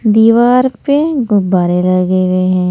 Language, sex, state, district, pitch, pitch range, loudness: Hindi, female, Uttar Pradesh, Saharanpur, 205 Hz, 185-245 Hz, -11 LUFS